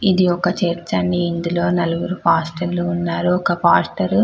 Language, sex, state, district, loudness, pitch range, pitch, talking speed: Telugu, female, Telangana, Karimnagar, -18 LUFS, 170-180 Hz, 175 Hz, 155 wpm